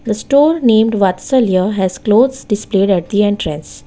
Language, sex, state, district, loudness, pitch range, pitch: English, female, Gujarat, Valsad, -14 LUFS, 190-230 Hz, 205 Hz